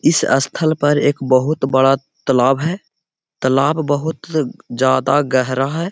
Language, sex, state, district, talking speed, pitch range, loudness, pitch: Hindi, male, Bihar, Gaya, 130 wpm, 130-155 Hz, -16 LUFS, 135 Hz